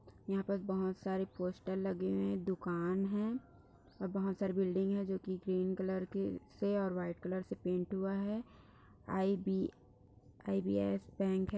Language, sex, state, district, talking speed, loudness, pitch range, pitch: Hindi, female, Maharashtra, Solapur, 155 wpm, -38 LUFS, 180-195 Hz, 190 Hz